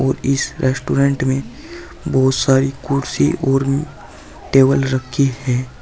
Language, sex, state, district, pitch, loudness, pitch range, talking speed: Hindi, male, Uttar Pradesh, Saharanpur, 135 Hz, -17 LUFS, 130-140 Hz, 115 wpm